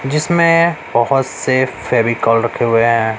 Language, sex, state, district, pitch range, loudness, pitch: Hindi, male, Bihar, West Champaran, 115-150 Hz, -14 LUFS, 125 Hz